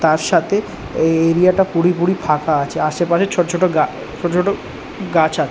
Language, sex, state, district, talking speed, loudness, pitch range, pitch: Bengali, male, West Bengal, Dakshin Dinajpur, 175 wpm, -17 LUFS, 160-185 Hz, 170 Hz